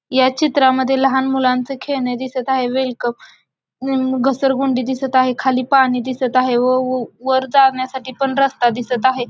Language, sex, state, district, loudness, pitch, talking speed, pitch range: Marathi, female, Maharashtra, Solapur, -17 LUFS, 260 Hz, 140 wpm, 255-265 Hz